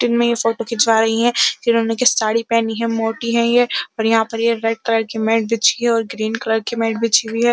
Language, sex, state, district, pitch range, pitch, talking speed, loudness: Hindi, female, Uttar Pradesh, Jyotiba Phule Nagar, 225-235 Hz, 230 Hz, 270 wpm, -17 LUFS